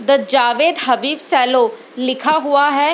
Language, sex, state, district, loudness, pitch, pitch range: Hindi, female, Bihar, Lakhisarai, -15 LUFS, 280 Hz, 255-310 Hz